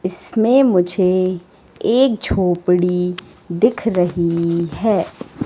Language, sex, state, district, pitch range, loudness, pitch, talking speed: Hindi, female, Madhya Pradesh, Katni, 175-220 Hz, -17 LUFS, 185 Hz, 75 wpm